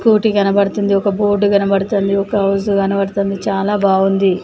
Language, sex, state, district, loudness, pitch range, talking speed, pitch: Telugu, female, Telangana, Nalgonda, -15 LUFS, 195-205 Hz, 150 wpm, 200 Hz